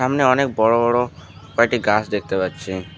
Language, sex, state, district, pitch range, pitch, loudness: Bengali, male, West Bengal, Alipurduar, 95-120 Hz, 110 Hz, -19 LUFS